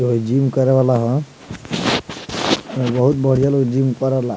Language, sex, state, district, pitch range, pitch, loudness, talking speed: Bhojpuri, male, Bihar, Muzaffarpur, 125-135 Hz, 130 Hz, -18 LUFS, 150 wpm